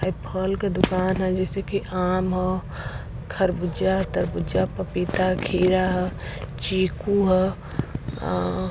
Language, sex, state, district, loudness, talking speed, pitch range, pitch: Hindi, female, Uttar Pradesh, Varanasi, -24 LUFS, 125 wpm, 180-190 Hz, 185 Hz